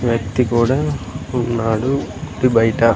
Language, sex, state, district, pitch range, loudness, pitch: Telugu, male, Andhra Pradesh, Sri Satya Sai, 115-125 Hz, -18 LUFS, 120 Hz